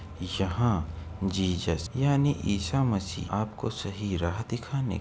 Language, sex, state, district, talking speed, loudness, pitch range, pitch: Hindi, male, Uttar Pradesh, Etah, 145 wpm, -29 LUFS, 90-115 Hz, 100 Hz